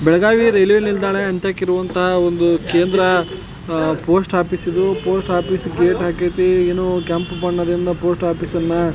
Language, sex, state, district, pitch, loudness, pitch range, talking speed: Kannada, male, Karnataka, Belgaum, 180 Hz, -17 LUFS, 170-185 Hz, 140 wpm